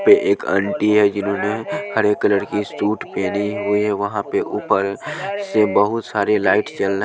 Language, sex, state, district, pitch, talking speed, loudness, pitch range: Hindi, male, Punjab, Pathankot, 105 Hz, 180 wpm, -19 LUFS, 100-115 Hz